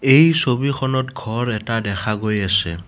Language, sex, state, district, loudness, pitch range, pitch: Assamese, male, Assam, Kamrup Metropolitan, -19 LUFS, 105-130 Hz, 115 Hz